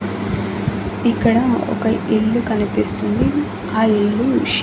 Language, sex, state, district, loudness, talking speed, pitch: Telugu, female, Andhra Pradesh, Annamaya, -18 LUFS, 80 wpm, 205 Hz